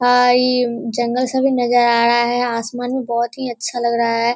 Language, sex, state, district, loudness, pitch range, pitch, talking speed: Hindi, female, Bihar, Kishanganj, -17 LUFS, 235-250 Hz, 245 Hz, 205 wpm